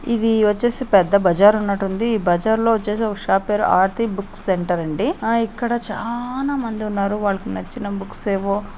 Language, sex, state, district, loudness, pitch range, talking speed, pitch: Telugu, female, Andhra Pradesh, Anantapur, -19 LUFS, 195-230 Hz, 165 wpm, 210 Hz